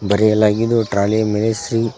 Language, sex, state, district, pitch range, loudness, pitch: Kannada, male, Karnataka, Koppal, 105-115 Hz, -16 LUFS, 110 Hz